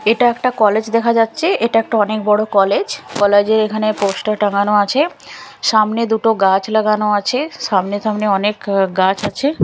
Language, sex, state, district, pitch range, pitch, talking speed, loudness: Bengali, female, Chhattisgarh, Raipur, 205-230 Hz, 215 Hz, 160 wpm, -15 LUFS